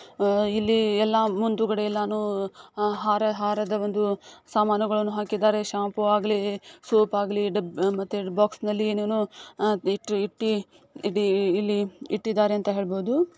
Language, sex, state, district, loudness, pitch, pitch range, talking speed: Kannada, female, Karnataka, Dakshina Kannada, -25 LUFS, 210 Hz, 205-215 Hz, 100 wpm